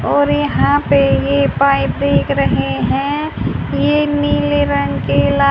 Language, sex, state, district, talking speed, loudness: Hindi, female, Haryana, Charkhi Dadri, 140 wpm, -15 LUFS